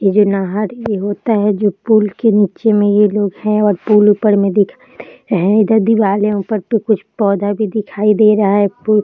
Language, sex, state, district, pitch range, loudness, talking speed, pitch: Hindi, female, Bihar, Jahanabad, 205-215 Hz, -14 LUFS, 245 wpm, 210 Hz